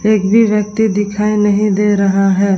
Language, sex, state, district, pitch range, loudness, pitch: Hindi, female, Bihar, Vaishali, 200-210 Hz, -13 LUFS, 210 Hz